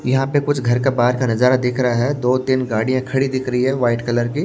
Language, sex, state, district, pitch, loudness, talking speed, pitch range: Hindi, male, Maharashtra, Washim, 125 Hz, -18 LUFS, 270 wpm, 120-135 Hz